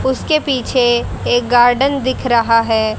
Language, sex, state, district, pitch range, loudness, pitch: Hindi, female, Haryana, Charkhi Dadri, 235-265 Hz, -14 LUFS, 245 Hz